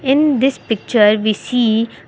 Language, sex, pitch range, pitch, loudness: English, female, 215-270 Hz, 235 Hz, -15 LUFS